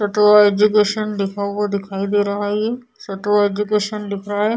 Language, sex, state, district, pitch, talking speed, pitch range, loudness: Hindi, female, Bihar, Vaishali, 205 Hz, 195 wpm, 200-210 Hz, -18 LUFS